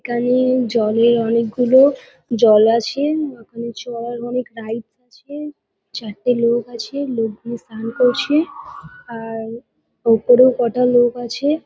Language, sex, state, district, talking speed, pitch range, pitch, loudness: Bengali, female, West Bengal, Kolkata, 110 wpm, 230-255 Hz, 240 Hz, -17 LUFS